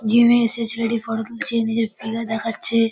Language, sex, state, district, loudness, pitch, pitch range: Bengali, male, West Bengal, Dakshin Dinajpur, -19 LUFS, 230 Hz, 225-230 Hz